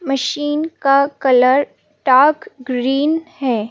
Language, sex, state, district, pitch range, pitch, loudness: Hindi, female, Madhya Pradesh, Bhopal, 255-295 Hz, 275 Hz, -16 LUFS